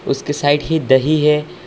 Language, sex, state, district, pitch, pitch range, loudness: Hindi, male, Assam, Hailakandi, 150 Hz, 145-160 Hz, -15 LUFS